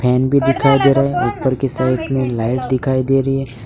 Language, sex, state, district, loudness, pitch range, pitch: Hindi, male, Gujarat, Valsad, -16 LUFS, 130-135 Hz, 130 Hz